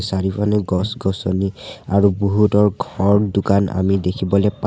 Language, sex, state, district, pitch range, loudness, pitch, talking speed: Assamese, male, Assam, Sonitpur, 95-105 Hz, -18 LUFS, 100 Hz, 115 wpm